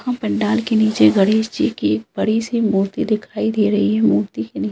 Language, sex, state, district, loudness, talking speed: Hindi, female, Bihar, Saran, -18 LUFS, 240 wpm